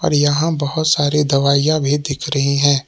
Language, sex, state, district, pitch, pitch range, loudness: Hindi, male, Jharkhand, Palamu, 145 Hz, 140-150 Hz, -16 LUFS